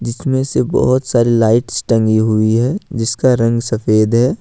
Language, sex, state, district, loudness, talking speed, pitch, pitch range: Hindi, male, Jharkhand, Ranchi, -14 LUFS, 165 wpm, 115 Hz, 110-130 Hz